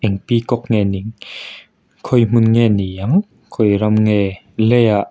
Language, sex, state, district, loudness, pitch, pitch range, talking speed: Mizo, male, Mizoram, Aizawl, -16 LUFS, 110 Hz, 100-115 Hz, 165 wpm